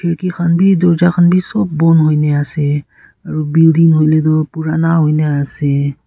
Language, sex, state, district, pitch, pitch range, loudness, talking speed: Nagamese, female, Nagaland, Kohima, 160 Hz, 150-170 Hz, -13 LUFS, 170 wpm